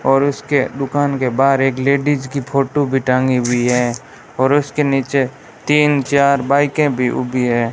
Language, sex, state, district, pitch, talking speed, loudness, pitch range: Hindi, male, Rajasthan, Bikaner, 135 Hz, 170 wpm, -16 LUFS, 130-140 Hz